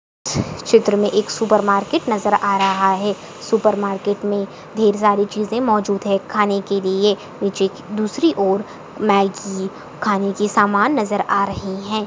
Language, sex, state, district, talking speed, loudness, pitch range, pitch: Hindi, female, Maharashtra, Solapur, 155 wpm, -18 LUFS, 200-215 Hz, 205 Hz